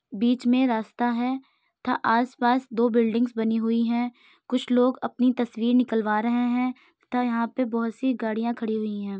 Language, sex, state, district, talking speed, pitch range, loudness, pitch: Hindi, male, Uttar Pradesh, Muzaffarnagar, 175 wpm, 225-250 Hz, -25 LUFS, 240 Hz